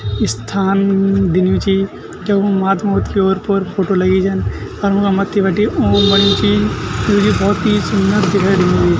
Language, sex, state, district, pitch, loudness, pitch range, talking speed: Garhwali, male, Uttarakhand, Tehri Garhwal, 195 Hz, -14 LUFS, 135-200 Hz, 175 wpm